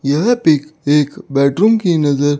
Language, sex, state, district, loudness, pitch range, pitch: Hindi, male, Chandigarh, Chandigarh, -14 LUFS, 145-185 Hz, 150 Hz